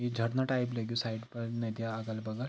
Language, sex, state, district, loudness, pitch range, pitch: Garhwali, male, Uttarakhand, Tehri Garhwal, -35 LUFS, 110-120 Hz, 115 Hz